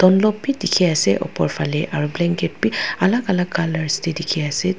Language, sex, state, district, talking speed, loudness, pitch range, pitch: Nagamese, female, Nagaland, Dimapur, 190 wpm, -19 LUFS, 155-190 Hz, 170 Hz